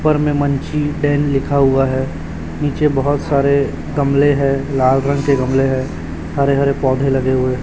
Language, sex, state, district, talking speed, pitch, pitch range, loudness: Hindi, male, Chhattisgarh, Raipur, 140 wpm, 140 Hz, 130-145 Hz, -16 LUFS